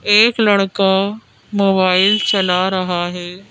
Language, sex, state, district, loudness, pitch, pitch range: Hindi, female, Madhya Pradesh, Bhopal, -15 LUFS, 195 Hz, 185-205 Hz